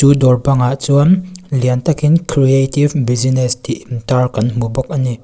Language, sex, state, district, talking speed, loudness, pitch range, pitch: Mizo, female, Mizoram, Aizawl, 170 wpm, -14 LUFS, 125-145 Hz, 135 Hz